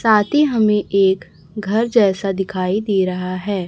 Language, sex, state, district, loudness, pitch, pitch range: Hindi, female, Chhattisgarh, Raipur, -17 LUFS, 200 Hz, 190-215 Hz